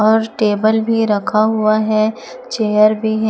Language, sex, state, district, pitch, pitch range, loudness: Hindi, female, Jharkhand, Palamu, 215 Hz, 215-220 Hz, -15 LUFS